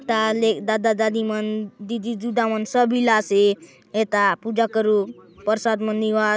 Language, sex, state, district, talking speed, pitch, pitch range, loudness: Halbi, female, Chhattisgarh, Bastar, 170 wpm, 220 Hz, 210-225 Hz, -21 LUFS